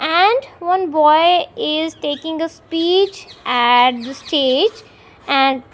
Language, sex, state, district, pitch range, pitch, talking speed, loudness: English, female, Punjab, Kapurthala, 270-355 Hz, 320 Hz, 125 wpm, -16 LUFS